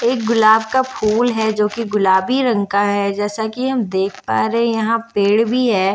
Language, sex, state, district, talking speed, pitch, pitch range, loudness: Hindi, female, Bihar, Katihar, 210 wpm, 220 Hz, 200-235 Hz, -17 LUFS